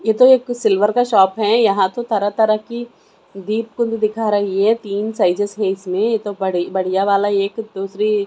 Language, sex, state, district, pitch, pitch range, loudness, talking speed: Hindi, female, Maharashtra, Mumbai Suburban, 210 Hz, 195-225 Hz, -17 LUFS, 180 wpm